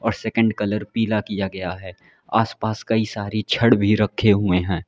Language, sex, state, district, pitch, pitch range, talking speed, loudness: Hindi, male, Uttar Pradesh, Lalitpur, 105 Hz, 95-110 Hz, 195 wpm, -21 LUFS